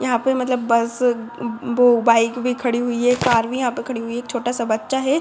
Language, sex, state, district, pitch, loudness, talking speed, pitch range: Hindi, female, Uttar Pradesh, Deoria, 240 Hz, -19 LUFS, 255 wpm, 235-250 Hz